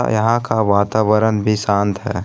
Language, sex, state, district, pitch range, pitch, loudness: Hindi, male, Jharkhand, Ranchi, 100-110 Hz, 105 Hz, -16 LUFS